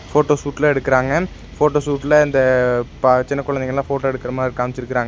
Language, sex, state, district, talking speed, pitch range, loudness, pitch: Tamil, male, Tamil Nadu, Nilgiris, 155 wpm, 130-145 Hz, -18 LUFS, 135 Hz